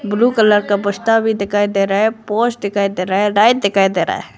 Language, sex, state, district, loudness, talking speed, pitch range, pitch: Hindi, female, Arunachal Pradesh, Lower Dibang Valley, -15 LUFS, 260 wpm, 200-220 Hz, 205 Hz